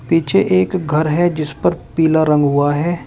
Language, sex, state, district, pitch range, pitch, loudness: Hindi, male, Uttar Pradesh, Shamli, 150-175 Hz, 160 Hz, -15 LUFS